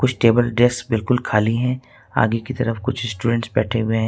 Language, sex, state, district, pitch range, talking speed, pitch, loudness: Hindi, male, Jharkhand, Ranchi, 115-125 Hz, 190 wpm, 115 Hz, -20 LUFS